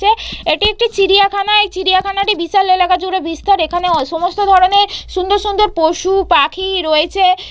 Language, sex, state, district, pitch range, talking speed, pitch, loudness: Bengali, female, West Bengal, Purulia, 355-400 Hz, 145 wpm, 380 Hz, -13 LUFS